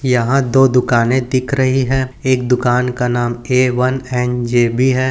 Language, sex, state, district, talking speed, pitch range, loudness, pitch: Hindi, male, Chhattisgarh, Bilaspur, 140 wpm, 125-130 Hz, -15 LUFS, 125 Hz